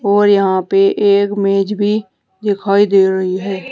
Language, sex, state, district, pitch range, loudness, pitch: Hindi, female, Uttar Pradesh, Saharanpur, 195-205 Hz, -14 LUFS, 200 Hz